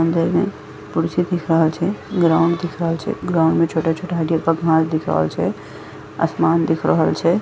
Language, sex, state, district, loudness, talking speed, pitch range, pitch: Angika, female, Bihar, Bhagalpur, -19 LUFS, 180 wpm, 160-175 Hz, 165 Hz